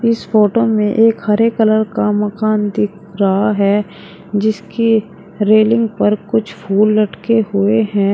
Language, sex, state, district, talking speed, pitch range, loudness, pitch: Hindi, female, Uttar Pradesh, Shamli, 140 wpm, 205-225 Hz, -14 LUFS, 210 Hz